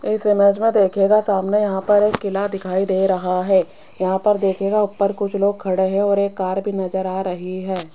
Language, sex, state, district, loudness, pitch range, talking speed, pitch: Hindi, female, Rajasthan, Jaipur, -19 LUFS, 190-205 Hz, 220 wpm, 195 Hz